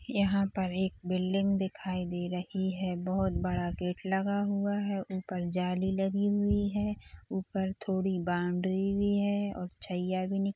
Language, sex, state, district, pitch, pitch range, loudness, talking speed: Hindi, female, Chhattisgarh, Rajnandgaon, 190 Hz, 185-200 Hz, -32 LUFS, 160 wpm